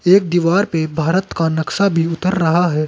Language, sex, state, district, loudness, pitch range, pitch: Hindi, male, Uttar Pradesh, Saharanpur, -16 LUFS, 160-185 Hz, 170 Hz